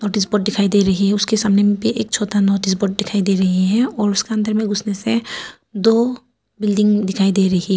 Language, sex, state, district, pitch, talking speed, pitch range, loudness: Hindi, female, Arunachal Pradesh, Papum Pare, 205 Hz, 225 wpm, 195-215 Hz, -17 LUFS